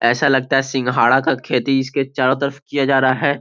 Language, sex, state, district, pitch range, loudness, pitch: Hindi, male, Bihar, Gopalganj, 130-140 Hz, -17 LUFS, 135 Hz